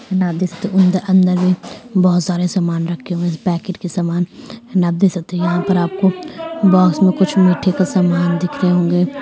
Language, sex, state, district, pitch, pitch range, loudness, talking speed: Hindi, female, Bihar, Gaya, 180 Hz, 175-190 Hz, -16 LUFS, 190 wpm